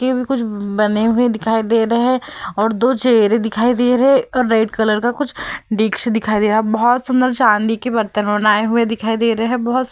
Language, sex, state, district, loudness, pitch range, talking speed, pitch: Hindi, female, Uttar Pradesh, Hamirpur, -16 LUFS, 220-250 Hz, 240 wpm, 230 Hz